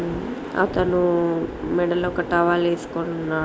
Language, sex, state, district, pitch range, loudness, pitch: Telugu, female, Andhra Pradesh, Srikakulam, 165-175 Hz, -22 LUFS, 175 Hz